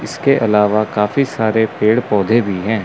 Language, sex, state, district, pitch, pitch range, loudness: Hindi, male, Chandigarh, Chandigarh, 110 Hz, 105-120 Hz, -15 LUFS